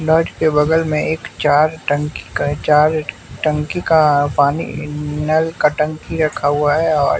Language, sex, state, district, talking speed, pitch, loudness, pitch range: Hindi, male, Bihar, West Champaran, 150 wpm, 150 Hz, -16 LUFS, 145-155 Hz